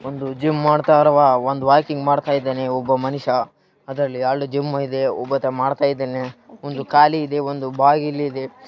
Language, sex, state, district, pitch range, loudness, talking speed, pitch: Kannada, male, Karnataka, Raichur, 135-145 Hz, -19 LUFS, 150 wpm, 140 Hz